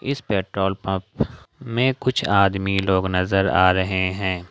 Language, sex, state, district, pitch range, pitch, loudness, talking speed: Hindi, male, Jharkhand, Ranchi, 95-100 Hz, 95 Hz, -21 LUFS, 145 wpm